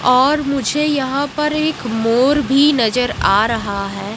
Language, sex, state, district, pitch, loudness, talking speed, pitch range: Hindi, female, Odisha, Malkangiri, 260 Hz, -16 LUFS, 160 wpm, 225-290 Hz